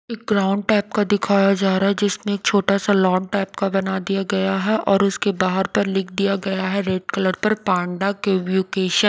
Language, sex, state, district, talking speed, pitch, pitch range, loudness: Hindi, female, Odisha, Nuapada, 210 wpm, 195 Hz, 190-200 Hz, -20 LUFS